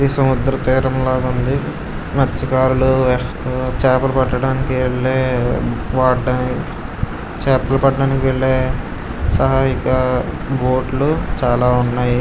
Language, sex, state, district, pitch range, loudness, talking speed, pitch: Telugu, male, Andhra Pradesh, Srikakulam, 125-130 Hz, -17 LUFS, 85 wpm, 130 Hz